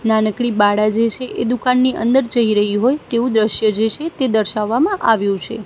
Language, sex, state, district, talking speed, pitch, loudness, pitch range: Gujarati, female, Gujarat, Gandhinagar, 190 wpm, 225 Hz, -16 LUFS, 215-250 Hz